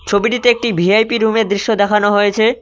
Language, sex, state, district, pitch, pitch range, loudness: Bengali, male, West Bengal, Cooch Behar, 220 Hz, 205-230 Hz, -14 LUFS